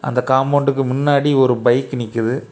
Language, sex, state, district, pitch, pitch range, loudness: Tamil, male, Tamil Nadu, Kanyakumari, 130 Hz, 125-140 Hz, -16 LUFS